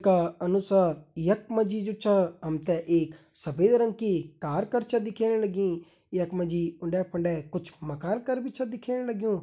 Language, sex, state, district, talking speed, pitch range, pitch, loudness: Hindi, male, Uttarakhand, Tehri Garhwal, 190 wpm, 170-220 Hz, 185 Hz, -28 LUFS